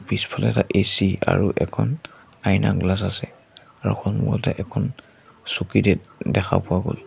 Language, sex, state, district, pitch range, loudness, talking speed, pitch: Assamese, male, Assam, Sonitpur, 100-140 Hz, -22 LUFS, 135 wpm, 120 Hz